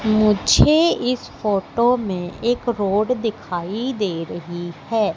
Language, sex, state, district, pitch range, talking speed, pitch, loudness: Hindi, female, Madhya Pradesh, Katni, 185-240 Hz, 115 wpm, 215 Hz, -20 LUFS